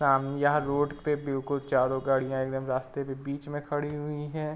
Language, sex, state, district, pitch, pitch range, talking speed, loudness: Hindi, male, Uttar Pradesh, Varanasi, 140 Hz, 135-145 Hz, 195 wpm, -29 LUFS